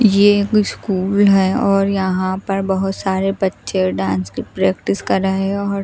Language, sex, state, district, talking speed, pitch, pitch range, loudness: Hindi, female, Bihar, Katihar, 165 wpm, 195 Hz, 190-200 Hz, -17 LUFS